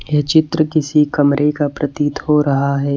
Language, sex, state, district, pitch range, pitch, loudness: Hindi, male, Chhattisgarh, Raipur, 140-150 Hz, 150 Hz, -16 LUFS